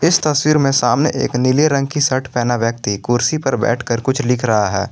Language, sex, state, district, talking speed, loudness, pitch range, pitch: Hindi, male, Jharkhand, Garhwa, 220 wpm, -16 LUFS, 120-140 Hz, 125 Hz